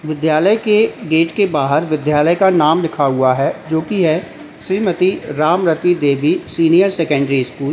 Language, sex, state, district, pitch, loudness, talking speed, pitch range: Hindi, male, Uttar Pradesh, Lalitpur, 160 Hz, -15 LUFS, 165 wpm, 150-180 Hz